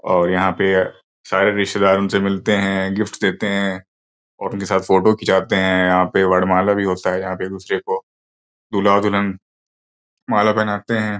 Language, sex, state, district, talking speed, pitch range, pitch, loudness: Hindi, male, Uttar Pradesh, Gorakhpur, 175 wpm, 95-100 Hz, 100 Hz, -18 LUFS